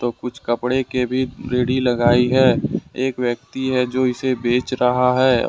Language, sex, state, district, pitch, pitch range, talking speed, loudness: Hindi, male, Jharkhand, Ranchi, 125 Hz, 125-130 Hz, 175 wpm, -19 LUFS